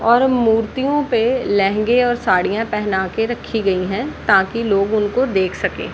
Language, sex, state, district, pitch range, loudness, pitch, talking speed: Hindi, female, Bihar, Gaya, 195-240 Hz, -17 LUFS, 220 Hz, 160 wpm